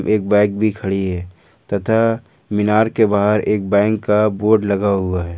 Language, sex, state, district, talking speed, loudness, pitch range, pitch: Hindi, male, Jharkhand, Ranchi, 180 wpm, -17 LUFS, 100-110 Hz, 105 Hz